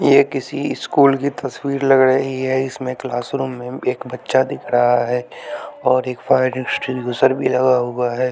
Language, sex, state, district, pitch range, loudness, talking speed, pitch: Hindi, male, Bihar, West Champaran, 125-130 Hz, -18 LUFS, 175 wpm, 130 Hz